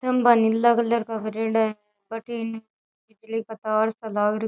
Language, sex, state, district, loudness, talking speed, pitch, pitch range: Rajasthani, female, Rajasthan, Churu, -23 LUFS, 175 wpm, 225 Hz, 220-230 Hz